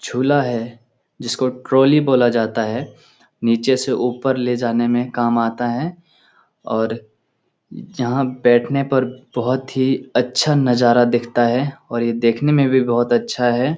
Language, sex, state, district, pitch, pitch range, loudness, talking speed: Hindi, male, Bihar, Lakhisarai, 125 Hz, 120-135 Hz, -18 LUFS, 150 wpm